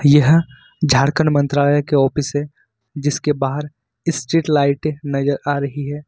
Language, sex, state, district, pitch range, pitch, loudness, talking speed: Hindi, male, Jharkhand, Ranchi, 140-150 Hz, 145 Hz, -18 LUFS, 140 wpm